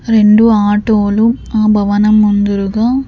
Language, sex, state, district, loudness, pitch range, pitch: Telugu, female, Andhra Pradesh, Sri Satya Sai, -11 LUFS, 205-225 Hz, 215 Hz